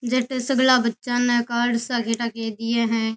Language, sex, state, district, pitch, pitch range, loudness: Rajasthani, female, Rajasthan, Nagaur, 235 Hz, 230-245 Hz, -22 LUFS